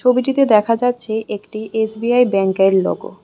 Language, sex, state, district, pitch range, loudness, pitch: Bengali, female, Tripura, West Tripura, 210-245 Hz, -17 LUFS, 220 Hz